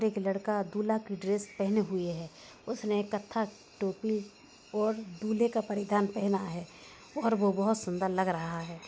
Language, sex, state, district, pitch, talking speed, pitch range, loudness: Hindi, female, Uttar Pradesh, Budaun, 205 Hz, 160 wpm, 190-220 Hz, -32 LUFS